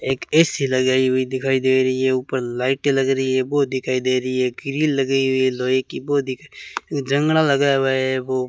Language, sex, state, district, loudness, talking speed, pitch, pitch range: Hindi, male, Rajasthan, Bikaner, -19 LUFS, 225 wpm, 130 Hz, 130-140 Hz